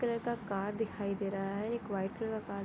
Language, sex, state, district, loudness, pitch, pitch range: Hindi, female, Jharkhand, Sahebganj, -37 LUFS, 205 Hz, 200-225 Hz